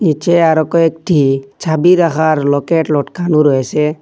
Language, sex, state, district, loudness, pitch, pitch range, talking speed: Bengali, male, Assam, Hailakandi, -13 LUFS, 155 Hz, 145-165 Hz, 120 wpm